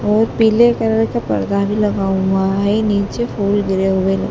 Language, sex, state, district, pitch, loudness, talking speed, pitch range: Hindi, female, Madhya Pradesh, Dhar, 205 Hz, -16 LUFS, 180 wpm, 195-220 Hz